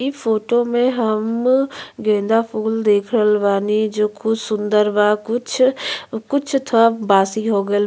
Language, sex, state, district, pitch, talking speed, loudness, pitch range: Bhojpuri, female, Uttar Pradesh, Ghazipur, 220 Hz, 150 wpm, -18 LUFS, 210-240 Hz